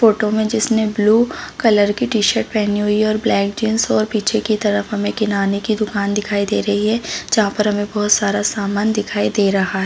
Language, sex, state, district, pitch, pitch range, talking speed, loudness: Hindi, female, Chhattisgarh, Bilaspur, 210 Hz, 205-220 Hz, 205 wpm, -17 LUFS